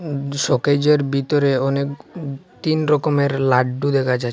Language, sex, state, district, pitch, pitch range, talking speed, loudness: Bengali, male, Assam, Hailakandi, 140 Hz, 135-150 Hz, 110 wpm, -19 LUFS